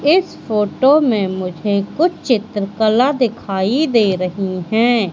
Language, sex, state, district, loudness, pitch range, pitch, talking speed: Hindi, female, Madhya Pradesh, Katni, -16 LUFS, 195-250 Hz, 220 Hz, 115 wpm